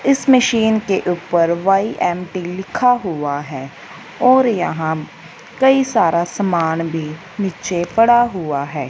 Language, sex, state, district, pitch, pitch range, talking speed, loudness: Hindi, female, Punjab, Fazilka, 180 Hz, 165-230 Hz, 120 wpm, -17 LUFS